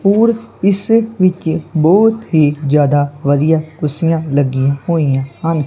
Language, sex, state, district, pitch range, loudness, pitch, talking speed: Punjabi, male, Punjab, Kapurthala, 145-190 Hz, -14 LUFS, 160 Hz, 115 wpm